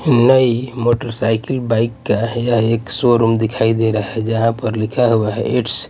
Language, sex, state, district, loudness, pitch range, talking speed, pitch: Hindi, male, Punjab, Pathankot, -16 LUFS, 110-120 Hz, 185 wpm, 115 Hz